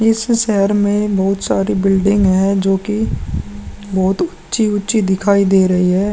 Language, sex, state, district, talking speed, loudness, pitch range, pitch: Hindi, male, Bihar, Vaishali, 155 wpm, -15 LUFS, 190-210 Hz, 195 Hz